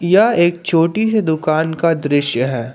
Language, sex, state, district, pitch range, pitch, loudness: Hindi, male, Jharkhand, Palamu, 145-175 Hz, 165 Hz, -15 LUFS